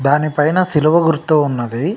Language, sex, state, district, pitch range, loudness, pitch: Telugu, male, Telangana, Nalgonda, 145-165 Hz, -15 LUFS, 150 Hz